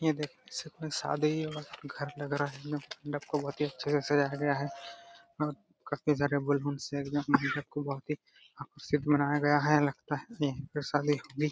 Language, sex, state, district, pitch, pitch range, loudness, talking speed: Hindi, male, Jharkhand, Jamtara, 145 Hz, 140-150 Hz, -32 LUFS, 205 wpm